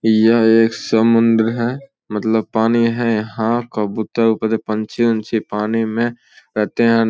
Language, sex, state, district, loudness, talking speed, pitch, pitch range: Hindi, male, Bihar, Samastipur, -17 LUFS, 150 wpm, 115 Hz, 110-115 Hz